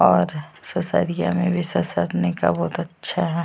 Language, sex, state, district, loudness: Hindi, female, Uttar Pradesh, Jyotiba Phule Nagar, -22 LUFS